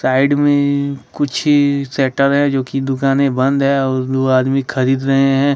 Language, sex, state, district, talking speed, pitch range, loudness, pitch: Hindi, male, Jharkhand, Ranchi, 170 wpm, 130-140 Hz, -15 LUFS, 135 Hz